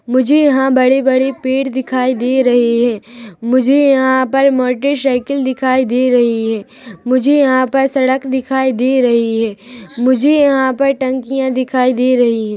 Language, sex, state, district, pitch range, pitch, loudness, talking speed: Hindi, female, Chhattisgarh, Rajnandgaon, 245-265 Hz, 260 Hz, -13 LUFS, 160 wpm